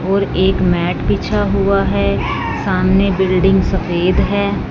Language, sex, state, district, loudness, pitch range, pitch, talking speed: Hindi, female, Punjab, Fazilka, -15 LUFS, 175-195 Hz, 190 Hz, 125 wpm